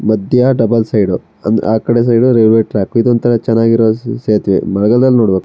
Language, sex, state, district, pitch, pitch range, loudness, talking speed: Kannada, male, Karnataka, Shimoga, 115 Hz, 105-120 Hz, -12 LUFS, 175 wpm